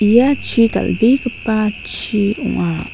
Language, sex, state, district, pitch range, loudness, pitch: Garo, female, Meghalaya, North Garo Hills, 205-240 Hz, -16 LUFS, 220 Hz